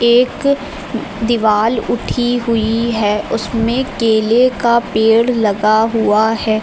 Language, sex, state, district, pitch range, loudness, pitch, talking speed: Hindi, female, Uttar Pradesh, Lucknow, 220-240 Hz, -15 LUFS, 230 Hz, 110 wpm